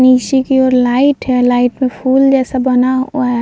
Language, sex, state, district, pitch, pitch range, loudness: Hindi, female, Bihar, Vaishali, 255 Hz, 250-265 Hz, -12 LUFS